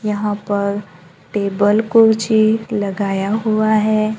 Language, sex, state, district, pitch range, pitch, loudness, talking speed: Hindi, female, Maharashtra, Gondia, 200-215 Hz, 210 Hz, -16 LUFS, 100 wpm